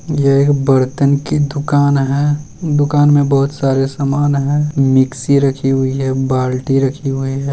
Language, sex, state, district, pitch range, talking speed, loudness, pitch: Hindi, male, Bihar, Jamui, 135-145 Hz, 160 wpm, -14 LUFS, 140 Hz